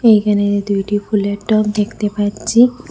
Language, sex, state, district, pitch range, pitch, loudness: Bengali, female, Assam, Hailakandi, 205-215 Hz, 205 Hz, -16 LUFS